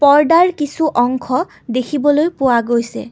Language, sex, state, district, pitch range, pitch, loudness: Assamese, female, Assam, Kamrup Metropolitan, 245-310 Hz, 285 Hz, -15 LUFS